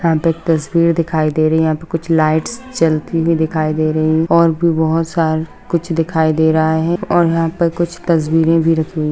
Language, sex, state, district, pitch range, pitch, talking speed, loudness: Hindi, female, Bihar, Saran, 160-165 Hz, 165 Hz, 230 wpm, -15 LUFS